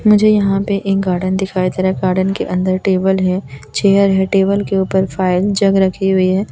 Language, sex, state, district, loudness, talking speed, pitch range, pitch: Hindi, female, Chhattisgarh, Raipur, -15 LUFS, 220 wpm, 185-195 Hz, 190 Hz